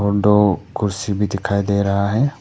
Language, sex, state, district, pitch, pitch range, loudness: Hindi, male, Arunachal Pradesh, Papum Pare, 100 Hz, 100-105 Hz, -18 LUFS